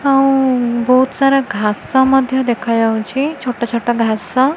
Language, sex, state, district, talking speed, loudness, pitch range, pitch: Odia, female, Odisha, Khordha, 120 wpm, -15 LUFS, 230-270 Hz, 255 Hz